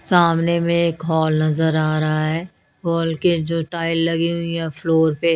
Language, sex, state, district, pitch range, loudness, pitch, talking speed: Hindi, female, Odisha, Nuapada, 160-170 Hz, -19 LUFS, 165 Hz, 190 wpm